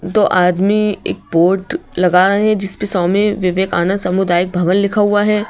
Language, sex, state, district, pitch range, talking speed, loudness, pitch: Hindi, female, Madhya Pradesh, Bhopal, 180-205 Hz, 165 wpm, -15 LUFS, 190 Hz